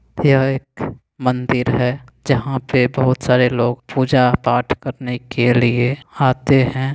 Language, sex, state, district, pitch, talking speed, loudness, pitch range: Hindi, male, Bihar, Begusarai, 125 Hz, 140 wpm, -17 LUFS, 125-135 Hz